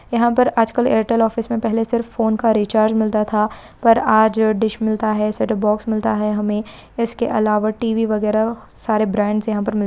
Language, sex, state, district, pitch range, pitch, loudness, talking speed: Hindi, female, Maharashtra, Solapur, 215-230 Hz, 220 Hz, -18 LUFS, 195 wpm